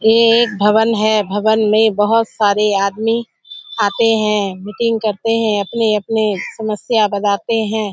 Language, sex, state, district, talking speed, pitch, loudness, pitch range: Hindi, female, Bihar, Kishanganj, 135 wpm, 215 Hz, -15 LUFS, 205-225 Hz